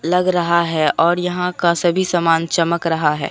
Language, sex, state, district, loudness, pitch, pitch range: Hindi, female, Bihar, Katihar, -17 LUFS, 170 Hz, 165-180 Hz